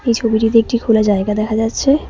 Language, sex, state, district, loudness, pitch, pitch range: Bengali, female, West Bengal, Cooch Behar, -15 LUFS, 225 Hz, 215-235 Hz